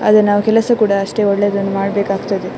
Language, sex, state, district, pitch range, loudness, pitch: Kannada, female, Karnataka, Dakshina Kannada, 195-215 Hz, -15 LUFS, 200 Hz